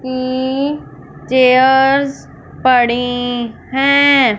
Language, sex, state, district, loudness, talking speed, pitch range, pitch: Hindi, female, Punjab, Fazilka, -13 LUFS, 55 wpm, 245-275 Hz, 260 Hz